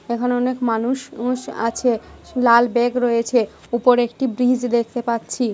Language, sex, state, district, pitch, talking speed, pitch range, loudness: Bengali, female, West Bengal, Jhargram, 240 Hz, 150 wpm, 235-250 Hz, -19 LUFS